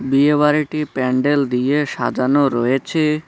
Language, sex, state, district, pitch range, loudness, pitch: Bengali, male, West Bengal, Cooch Behar, 130-150 Hz, -17 LUFS, 145 Hz